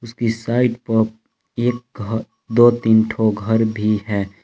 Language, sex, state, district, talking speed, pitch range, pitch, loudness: Hindi, male, Jharkhand, Palamu, 150 wpm, 110-120 Hz, 110 Hz, -19 LUFS